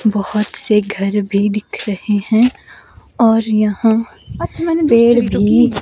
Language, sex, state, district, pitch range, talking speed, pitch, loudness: Hindi, female, Himachal Pradesh, Shimla, 205-230 Hz, 115 wpm, 215 Hz, -15 LUFS